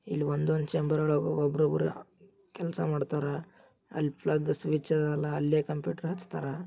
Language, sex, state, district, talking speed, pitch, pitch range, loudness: Kannada, male, Karnataka, Gulbarga, 125 wpm, 155 Hz, 150-165 Hz, -30 LUFS